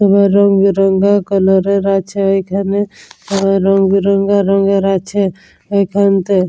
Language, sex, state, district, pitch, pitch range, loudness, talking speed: Bengali, female, West Bengal, Jalpaiguri, 195 Hz, 195-200 Hz, -13 LUFS, 100 wpm